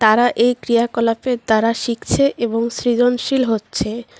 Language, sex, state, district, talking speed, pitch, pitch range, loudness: Bengali, female, West Bengal, Cooch Behar, 115 wpm, 235 Hz, 230-245 Hz, -18 LUFS